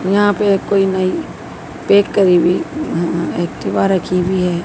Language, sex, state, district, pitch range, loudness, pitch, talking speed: Hindi, female, Madhya Pradesh, Dhar, 175-195 Hz, -15 LUFS, 185 Hz, 155 wpm